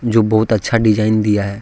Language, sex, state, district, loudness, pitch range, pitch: Hindi, male, Jharkhand, Deoghar, -15 LUFS, 105-110 Hz, 110 Hz